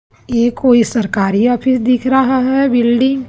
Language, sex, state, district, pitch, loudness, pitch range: Hindi, female, Chhattisgarh, Raipur, 245 Hz, -13 LUFS, 235-260 Hz